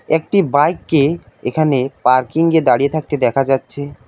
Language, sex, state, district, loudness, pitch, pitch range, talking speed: Bengali, male, West Bengal, Alipurduar, -16 LUFS, 145 Hz, 130-160 Hz, 130 wpm